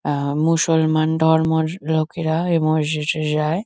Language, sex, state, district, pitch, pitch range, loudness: Bengali, female, West Bengal, Kolkata, 160 Hz, 155-160 Hz, -19 LUFS